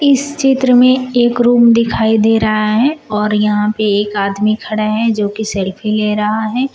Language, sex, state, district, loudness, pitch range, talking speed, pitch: Hindi, female, Uttar Pradesh, Shamli, -13 LUFS, 210-245 Hz, 195 wpm, 220 Hz